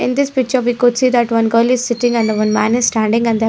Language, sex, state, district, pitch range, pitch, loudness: English, female, Haryana, Jhajjar, 225-245 Hz, 235 Hz, -14 LUFS